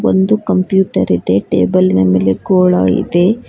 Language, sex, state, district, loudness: Kannada, female, Karnataka, Bangalore, -13 LUFS